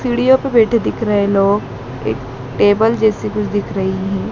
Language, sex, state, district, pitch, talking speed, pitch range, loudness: Hindi, female, Madhya Pradesh, Dhar, 205 Hz, 180 wpm, 190-225 Hz, -15 LUFS